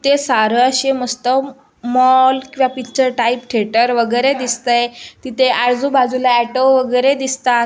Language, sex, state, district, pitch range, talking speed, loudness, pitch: Marathi, female, Maharashtra, Aurangabad, 240-265 Hz, 125 wpm, -15 LUFS, 255 Hz